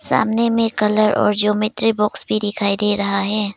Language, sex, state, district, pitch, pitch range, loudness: Hindi, female, Arunachal Pradesh, Papum Pare, 210 Hz, 205-215 Hz, -17 LUFS